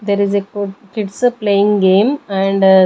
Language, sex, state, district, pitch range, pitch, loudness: English, female, Maharashtra, Gondia, 195-205 Hz, 200 Hz, -15 LUFS